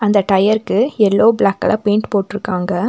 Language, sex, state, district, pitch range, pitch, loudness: Tamil, female, Tamil Nadu, Nilgiris, 195-215 Hz, 210 Hz, -15 LUFS